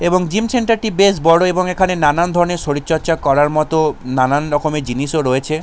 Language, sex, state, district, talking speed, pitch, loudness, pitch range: Bengali, male, West Bengal, Jalpaiguri, 180 wpm, 160 Hz, -15 LUFS, 145-180 Hz